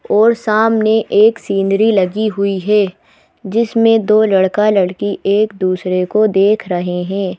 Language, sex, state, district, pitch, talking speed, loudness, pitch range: Hindi, female, Madhya Pradesh, Bhopal, 205 Hz, 140 wpm, -14 LUFS, 195-220 Hz